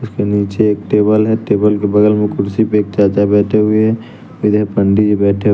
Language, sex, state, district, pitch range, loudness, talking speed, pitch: Hindi, male, Bihar, West Champaran, 100-105 Hz, -13 LUFS, 225 wpm, 105 Hz